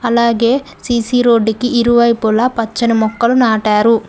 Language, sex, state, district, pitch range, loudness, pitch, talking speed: Telugu, female, Telangana, Mahabubabad, 225-240 Hz, -13 LUFS, 235 Hz, 115 wpm